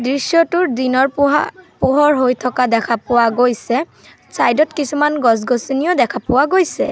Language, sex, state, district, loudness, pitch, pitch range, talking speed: Assamese, female, Assam, Sonitpur, -15 LUFS, 270 Hz, 245-295 Hz, 145 wpm